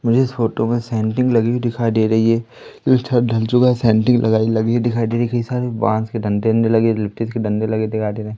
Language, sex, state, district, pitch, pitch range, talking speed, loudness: Hindi, male, Madhya Pradesh, Katni, 115 Hz, 110-120 Hz, 255 wpm, -17 LUFS